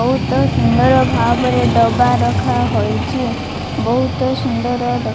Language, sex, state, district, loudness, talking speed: Odia, female, Odisha, Malkangiri, -15 LUFS, 95 wpm